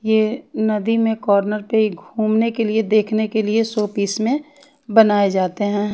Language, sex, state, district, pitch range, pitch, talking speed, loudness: Hindi, female, Haryana, Charkhi Dadri, 210-225 Hz, 220 Hz, 170 wpm, -18 LUFS